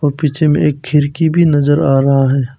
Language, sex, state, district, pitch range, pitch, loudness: Hindi, male, Arunachal Pradesh, Papum Pare, 135-155 Hz, 145 Hz, -13 LUFS